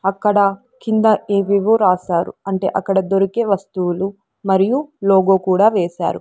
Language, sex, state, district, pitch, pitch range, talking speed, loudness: Telugu, female, Andhra Pradesh, Sri Satya Sai, 195 Hz, 190-210 Hz, 115 wpm, -17 LUFS